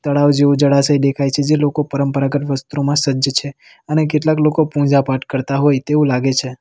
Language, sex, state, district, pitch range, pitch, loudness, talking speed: Gujarati, male, Gujarat, Valsad, 135-145 Hz, 145 Hz, -16 LUFS, 190 wpm